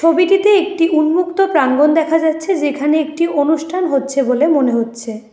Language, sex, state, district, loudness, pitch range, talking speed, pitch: Bengali, female, West Bengal, Alipurduar, -14 LUFS, 280-340 Hz, 145 wpm, 310 Hz